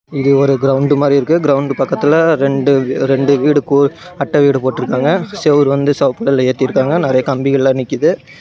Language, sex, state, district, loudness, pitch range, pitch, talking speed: Tamil, male, Tamil Nadu, Namakkal, -13 LUFS, 135-145 Hz, 140 Hz, 170 wpm